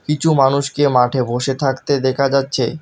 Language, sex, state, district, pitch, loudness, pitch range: Bengali, male, West Bengal, Alipurduar, 135 Hz, -16 LUFS, 130-145 Hz